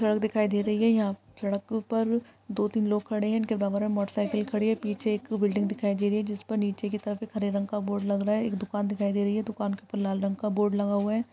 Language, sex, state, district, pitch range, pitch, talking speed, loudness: Maithili, female, Bihar, Araria, 205-215 Hz, 210 Hz, 305 wpm, -28 LUFS